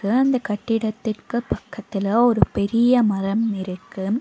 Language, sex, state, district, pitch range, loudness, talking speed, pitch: Tamil, female, Tamil Nadu, Nilgiris, 200-235 Hz, -21 LUFS, 100 wpm, 220 Hz